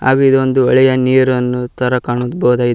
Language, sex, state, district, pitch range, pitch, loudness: Kannada, male, Karnataka, Koppal, 125-130 Hz, 130 Hz, -13 LUFS